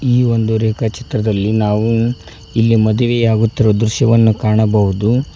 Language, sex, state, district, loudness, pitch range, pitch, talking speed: Kannada, male, Karnataka, Koppal, -14 LUFS, 110-115 Hz, 110 Hz, 100 wpm